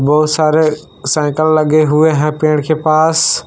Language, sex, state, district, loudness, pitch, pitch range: Hindi, male, Jharkhand, Palamu, -12 LUFS, 155 Hz, 150-155 Hz